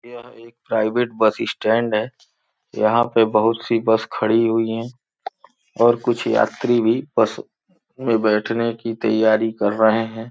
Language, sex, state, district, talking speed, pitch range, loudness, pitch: Hindi, male, Uttar Pradesh, Gorakhpur, 145 wpm, 110-120 Hz, -19 LUFS, 115 Hz